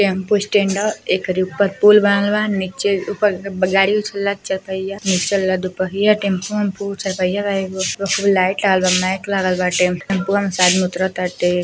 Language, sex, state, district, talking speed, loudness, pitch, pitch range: Bhojpuri, female, Uttar Pradesh, Deoria, 185 wpm, -17 LUFS, 195 Hz, 185-200 Hz